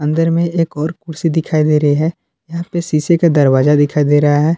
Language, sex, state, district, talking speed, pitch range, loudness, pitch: Hindi, male, Jharkhand, Palamu, 235 wpm, 150-165 Hz, -14 LUFS, 155 Hz